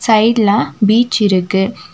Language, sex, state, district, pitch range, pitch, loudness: Tamil, female, Tamil Nadu, Nilgiris, 195-230 Hz, 210 Hz, -13 LUFS